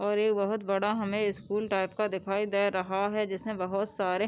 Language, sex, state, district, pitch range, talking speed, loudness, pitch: Hindi, female, Bihar, Madhepura, 195-210 Hz, 225 wpm, -30 LUFS, 200 Hz